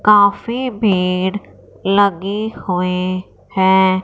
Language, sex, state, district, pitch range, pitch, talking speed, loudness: Hindi, female, Punjab, Fazilka, 185-205 Hz, 195 Hz, 75 wpm, -17 LUFS